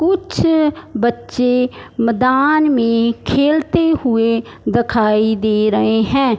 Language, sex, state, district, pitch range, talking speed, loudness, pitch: Hindi, male, Punjab, Fazilka, 230-290 Hz, 95 wpm, -15 LUFS, 240 Hz